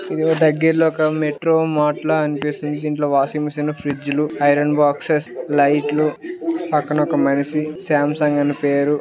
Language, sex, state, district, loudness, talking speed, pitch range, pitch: Telugu, male, Andhra Pradesh, Krishna, -18 LUFS, 175 wpm, 145-155 Hz, 150 Hz